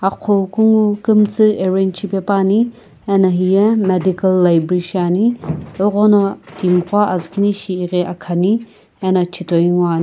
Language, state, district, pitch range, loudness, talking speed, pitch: Sumi, Nagaland, Kohima, 180-205 Hz, -15 LUFS, 95 wpm, 190 Hz